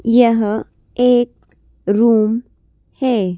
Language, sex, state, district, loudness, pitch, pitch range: Hindi, female, Madhya Pradesh, Bhopal, -16 LUFS, 230 Hz, 215-245 Hz